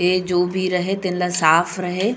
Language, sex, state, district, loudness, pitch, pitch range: Chhattisgarhi, female, Chhattisgarh, Raigarh, -19 LUFS, 180 Hz, 180-185 Hz